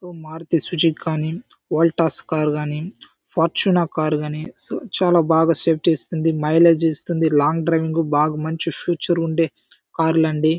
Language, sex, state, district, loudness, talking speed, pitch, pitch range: Telugu, male, Andhra Pradesh, Chittoor, -19 LUFS, 140 wpm, 165 Hz, 155-170 Hz